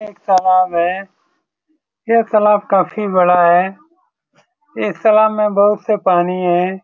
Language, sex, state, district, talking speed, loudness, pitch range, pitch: Hindi, male, Bihar, Saran, 140 wpm, -14 LUFS, 185-220 Hz, 205 Hz